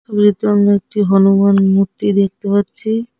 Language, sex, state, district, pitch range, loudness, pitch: Bengali, female, West Bengal, Cooch Behar, 195-210 Hz, -14 LUFS, 200 Hz